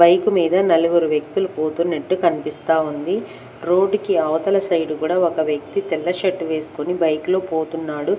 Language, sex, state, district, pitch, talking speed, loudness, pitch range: Telugu, female, Andhra Pradesh, Manyam, 165 Hz, 130 wpm, -20 LUFS, 155-180 Hz